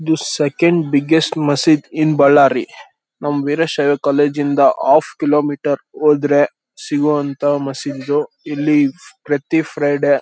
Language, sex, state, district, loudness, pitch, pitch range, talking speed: Kannada, male, Karnataka, Bellary, -16 LUFS, 145 Hz, 145-150 Hz, 125 wpm